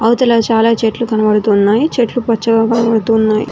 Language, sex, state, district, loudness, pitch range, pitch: Telugu, female, Telangana, Mahabubabad, -13 LUFS, 220-230 Hz, 225 Hz